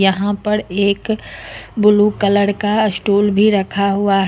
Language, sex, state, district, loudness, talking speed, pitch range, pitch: Hindi, female, Jharkhand, Ranchi, -15 LUFS, 155 wpm, 200-210 Hz, 205 Hz